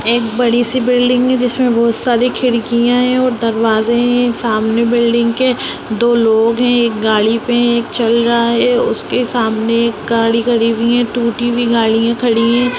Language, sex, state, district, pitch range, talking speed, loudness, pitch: Hindi, female, Bihar, Jamui, 230-245 Hz, 185 wpm, -13 LUFS, 235 Hz